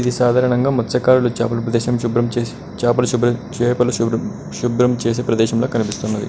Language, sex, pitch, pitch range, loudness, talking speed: Telugu, male, 120 Hz, 115-125 Hz, -18 LUFS, 145 wpm